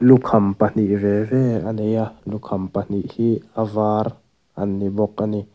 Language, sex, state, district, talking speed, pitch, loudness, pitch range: Mizo, male, Mizoram, Aizawl, 185 wpm, 105 Hz, -21 LUFS, 100-110 Hz